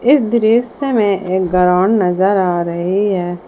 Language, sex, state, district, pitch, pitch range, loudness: Hindi, female, Jharkhand, Palamu, 190 Hz, 180-225 Hz, -14 LUFS